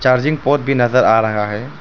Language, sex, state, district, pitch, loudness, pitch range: Hindi, male, Arunachal Pradesh, Papum Pare, 125 Hz, -15 LUFS, 110-135 Hz